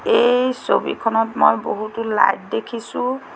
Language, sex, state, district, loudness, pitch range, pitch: Assamese, female, Assam, Sonitpur, -19 LUFS, 225-255 Hz, 240 Hz